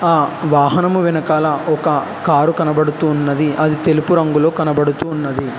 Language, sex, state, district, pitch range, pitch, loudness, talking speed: Telugu, male, Telangana, Hyderabad, 150-165 Hz, 155 Hz, -15 LUFS, 130 wpm